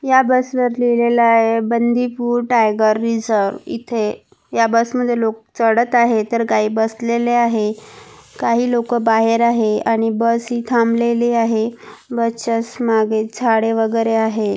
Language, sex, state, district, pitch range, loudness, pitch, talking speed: Marathi, female, Maharashtra, Pune, 225-240 Hz, -17 LUFS, 230 Hz, 130 wpm